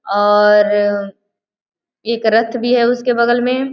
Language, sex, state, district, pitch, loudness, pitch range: Hindi, female, Uttar Pradesh, Gorakhpur, 230 Hz, -14 LUFS, 205-245 Hz